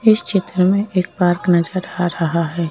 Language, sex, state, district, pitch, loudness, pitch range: Hindi, female, Madhya Pradesh, Bhopal, 180 Hz, -18 LUFS, 170-190 Hz